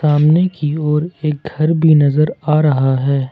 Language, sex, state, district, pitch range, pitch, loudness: Hindi, male, Jharkhand, Ranchi, 145-155 Hz, 150 Hz, -14 LUFS